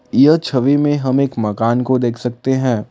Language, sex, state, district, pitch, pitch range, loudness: Hindi, male, Assam, Kamrup Metropolitan, 130 Hz, 120-140 Hz, -16 LUFS